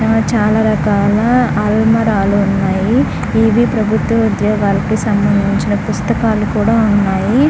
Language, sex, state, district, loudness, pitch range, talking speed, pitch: Telugu, female, Andhra Pradesh, Guntur, -13 LUFS, 200-225 Hz, 95 wpm, 215 Hz